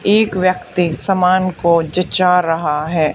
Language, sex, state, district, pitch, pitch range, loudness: Hindi, female, Haryana, Charkhi Dadri, 180 Hz, 165-185 Hz, -15 LUFS